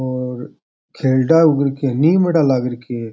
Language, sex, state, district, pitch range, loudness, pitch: Rajasthani, male, Rajasthan, Churu, 125-150 Hz, -16 LUFS, 135 Hz